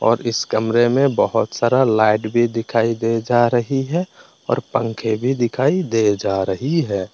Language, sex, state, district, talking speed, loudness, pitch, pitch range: Hindi, male, Tripura, West Tripura, 175 wpm, -18 LUFS, 115 Hz, 110-130 Hz